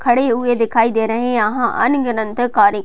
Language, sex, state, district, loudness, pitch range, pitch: Hindi, female, Bihar, Gopalganj, -16 LUFS, 225-245 Hz, 235 Hz